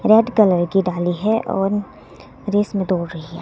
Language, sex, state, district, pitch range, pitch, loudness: Hindi, female, Himachal Pradesh, Shimla, 175-210 Hz, 195 Hz, -19 LUFS